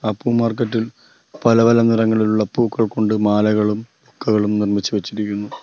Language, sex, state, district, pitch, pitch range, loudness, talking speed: Malayalam, male, Kerala, Kollam, 110 Hz, 105-115 Hz, -18 LUFS, 140 wpm